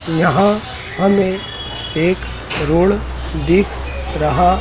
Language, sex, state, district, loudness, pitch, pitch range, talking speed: Hindi, male, Madhya Pradesh, Dhar, -17 LUFS, 180 Hz, 150-190 Hz, 80 wpm